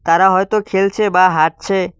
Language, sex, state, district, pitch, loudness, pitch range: Bengali, male, West Bengal, Cooch Behar, 190 Hz, -14 LUFS, 175-195 Hz